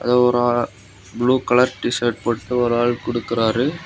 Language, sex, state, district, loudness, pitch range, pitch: Tamil, male, Tamil Nadu, Kanyakumari, -19 LUFS, 115-125 Hz, 120 Hz